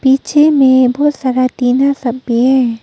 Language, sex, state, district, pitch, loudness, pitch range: Hindi, female, Arunachal Pradesh, Papum Pare, 260 Hz, -12 LUFS, 250-275 Hz